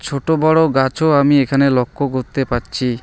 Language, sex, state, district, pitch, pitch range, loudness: Bengali, male, West Bengal, Alipurduar, 140 Hz, 130-150 Hz, -16 LUFS